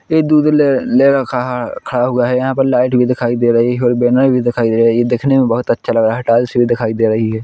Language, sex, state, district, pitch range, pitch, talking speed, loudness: Hindi, male, Chhattisgarh, Korba, 120-130 Hz, 125 Hz, 290 wpm, -13 LUFS